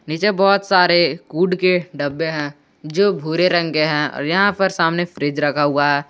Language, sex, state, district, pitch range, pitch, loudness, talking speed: Hindi, male, Jharkhand, Garhwa, 145-185 Hz, 165 Hz, -17 LUFS, 195 wpm